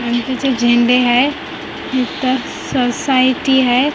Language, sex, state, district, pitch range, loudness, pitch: Marathi, female, Maharashtra, Mumbai Suburban, 245-265 Hz, -15 LUFS, 255 Hz